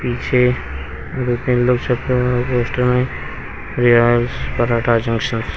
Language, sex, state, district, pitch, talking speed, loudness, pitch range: Hindi, male, Haryana, Rohtak, 120 Hz, 105 wpm, -17 LUFS, 115-125 Hz